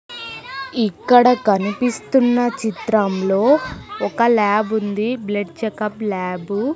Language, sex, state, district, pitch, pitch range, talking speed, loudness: Telugu, female, Andhra Pradesh, Sri Satya Sai, 220 Hz, 205-245 Hz, 80 wpm, -18 LUFS